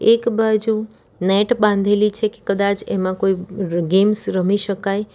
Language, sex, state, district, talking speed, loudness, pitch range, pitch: Gujarati, female, Gujarat, Valsad, 140 wpm, -18 LUFS, 195-215 Hz, 200 Hz